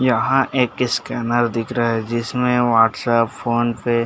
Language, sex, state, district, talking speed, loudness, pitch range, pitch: Hindi, male, Chhattisgarh, Bastar, 145 wpm, -19 LUFS, 115-125 Hz, 120 Hz